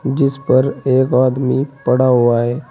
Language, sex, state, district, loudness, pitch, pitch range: Hindi, male, Uttar Pradesh, Saharanpur, -15 LUFS, 130 Hz, 125-135 Hz